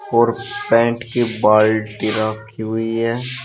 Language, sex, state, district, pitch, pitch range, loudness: Hindi, male, Uttar Pradesh, Shamli, 115 Hz, 110-115 Hz, -18 LUFS